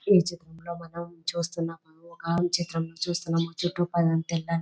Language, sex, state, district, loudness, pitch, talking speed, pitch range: Telugu, female, Telangana, Nalgonda, -28 LUFS, 170 Hz, 105 wpm, 165-175 Hz